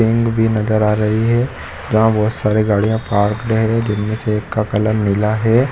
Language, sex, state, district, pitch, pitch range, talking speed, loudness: Hindi, male, Chhattisgarh, Bilaspur, 110 Hz, 105-110 Hz, 190 wpm, -16 LUFS